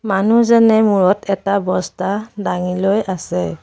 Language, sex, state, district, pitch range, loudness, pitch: Assamese, female, Assam, Sonitpur, 185-215 Hz, -16 LUFS, 195 Hz